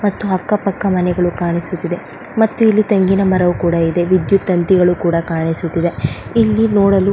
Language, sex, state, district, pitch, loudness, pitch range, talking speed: Kannada, female, Karnataka, Belgaum, 185 Hz, -15 LUFS, 175-200 Hz, 150 wpm